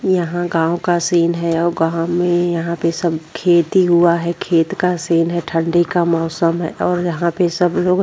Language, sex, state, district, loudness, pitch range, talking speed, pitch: Hindi, female, Uttar Pradesh, Varanasi, -17 LUFS, 165-175 Hz, 210 wpm, 170 Hz